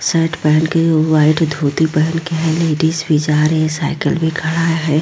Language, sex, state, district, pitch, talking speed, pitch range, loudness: Hindi, female, Bihar, Vaishali, 160 Hz, 215 wpm, 155-165 Hz, -15 LUFS